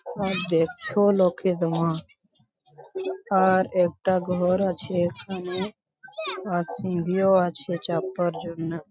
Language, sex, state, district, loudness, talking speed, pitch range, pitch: Bengali, male, West Bengal, Paschim Medinipur, -25 LUFS, 100 wpm, 175-190 Hz, 185 Hz